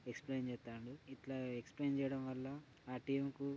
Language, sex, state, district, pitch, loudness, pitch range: Telugu, male, Telangana, Karimnagar, 135 Hz, -44 LUFS, 125-140 Hz